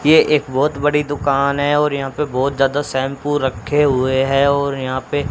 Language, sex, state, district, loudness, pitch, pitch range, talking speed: Hindi, male, Haryana, Charkhi Dadri, -17 LUFS, 140 Hz, 135-145 Hz, 205 wpm